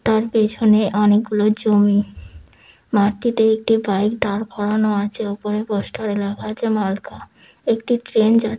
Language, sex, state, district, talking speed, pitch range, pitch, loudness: Bengali, female, West Bengal, Dakshin Dinajpur, 140 wpm, 205-220 Hz, 210 Hz, -19 LUFS